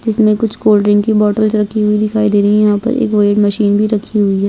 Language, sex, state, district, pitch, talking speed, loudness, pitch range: Hindi, female, Bihar, Jamui, 210 Hz, 265 wpm, -12 LUFS, 205-215 Hz